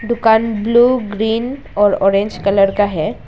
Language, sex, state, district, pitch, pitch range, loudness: Hindi, female, Arunachal Pradesh, Lower Dibang Valley, 220 Hz, 200-230 Hz, -15 LUFS